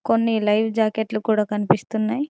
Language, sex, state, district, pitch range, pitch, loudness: Telugu, female, Telangana, Mahabubabad, 210-225 Hz, 220 Hz, -21 LUFS